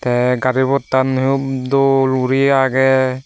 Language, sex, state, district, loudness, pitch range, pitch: Chakma, male, Tripura, Dhalai, -15 LUFS, 130-135 Hz, 130 Hz